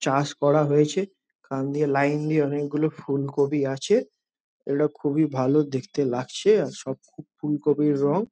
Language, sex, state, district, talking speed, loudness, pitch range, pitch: Bengali, male, West Bengal, Jhargram, 150 wpm, -24 LUFS, 140-150 Hz, 145 Hz